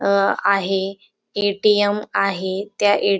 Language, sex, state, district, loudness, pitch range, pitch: Marathi, female, Maharashtra, Dhule, -19 LUFS, 195-205 Hz, 200 Hz